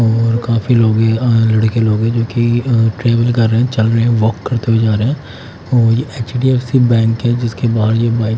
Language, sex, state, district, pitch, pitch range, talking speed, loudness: Hindi, male, Bihar, Kaimur, 115 Hz, 115-120 Hz, 245 wpm, -14 LUFS